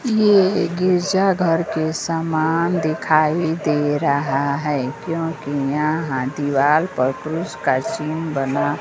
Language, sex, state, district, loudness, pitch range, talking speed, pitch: Hindi, female, Bihar, West Champaran, -19 LUFS, 145-170 Hz, 115 wpm, 155 Hz